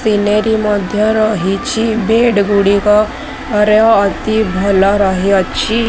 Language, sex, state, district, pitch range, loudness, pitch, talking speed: Odia, female, Odisha, Sambalpur, 200-220 Hz, -12 LUFS, 210 Hz, 80 wpm